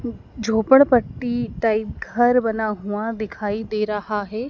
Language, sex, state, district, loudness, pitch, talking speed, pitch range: Hindi, female, Madhya Pradesh, Dhar, -21 LUFS, 220 Hz, 120 wpm, 215-240 Hz